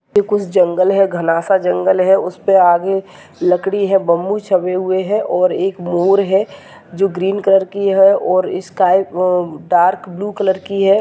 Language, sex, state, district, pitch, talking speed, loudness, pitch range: Hindi, male, Goa, North and South Goa, 190 Hz, 175 wpm, -15 LUFS, 180-195 Hz